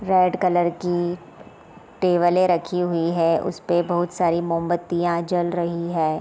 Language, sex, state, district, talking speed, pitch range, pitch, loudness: Hindi, female, Bihar, Sitamarhi, 145 wpm, 170-180 Hz, 175 Hz, -22 LUFS